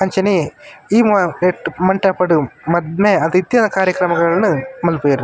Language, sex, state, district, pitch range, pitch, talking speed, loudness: Tulu, male, Karnataka, Dakshina Kannada, 170-195 Hz, 180 Hz, 115 wpm, -15 LUFS